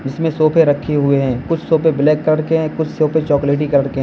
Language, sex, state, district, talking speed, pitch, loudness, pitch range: Hindi, male, Uttar Pradesh, Lalitpur, 255 wpm, 155 Hz, -15 LUFS, 140-160 Hz